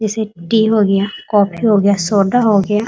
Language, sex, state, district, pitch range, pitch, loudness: Hindi, female, Bihar, Muzaffarpur, 200-220 Hz, 210 Hz, -14 LUFS